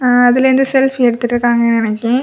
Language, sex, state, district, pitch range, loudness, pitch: Tamil, female, Tamil Nadu, Kanyakumari, 235-260 Hz, -13 LUFS, 245 Hz